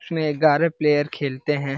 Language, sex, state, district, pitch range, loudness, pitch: Hindi, male, Bihar, Lakhisarai, 145-155 Hz, -21 LUFS, 150 Hz